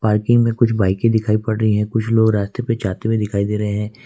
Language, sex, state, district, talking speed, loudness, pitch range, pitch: Hindi, male, Jharkhand, Ranchi, 265 wpm, -18 LUFS, 105-115 Hz, 110 Hz